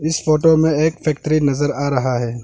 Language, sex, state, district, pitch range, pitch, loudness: Hindi, male, Arunachal Pradesh, Longding, 140-160 Hz, 150 Hz, -17 LUFS